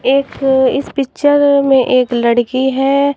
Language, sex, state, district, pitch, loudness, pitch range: Hindi, female, Bihar, West Champaran, 270 Hz, -13 LUFS, 255-280 Hz